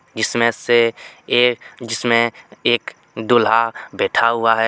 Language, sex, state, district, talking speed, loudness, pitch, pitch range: Hindi, male, Jharkhand, Deoghar, 115 wpm, -17 LUFS, 115 Hz, 115-120 Hz